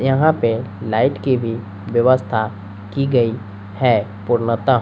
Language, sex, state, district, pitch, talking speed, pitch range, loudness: Hindi, female, Bihar, West Champaran, 115 Hz, 125 wpm, 105-130 Hz, -18 LUFS